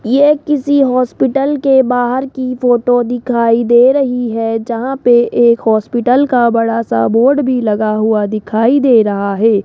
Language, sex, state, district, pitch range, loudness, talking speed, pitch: Hindi, male, Rajasthan, Jaipur, 225-265 Hz, -12 LUFS, 160 wpm, 245 Hz